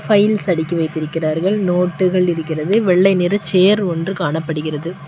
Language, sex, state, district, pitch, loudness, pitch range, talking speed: Tamil, female, Tamil Nadu, Kanyakumari, 180 Hz, -17 LUFS, 160-190 Hz, 120 wpm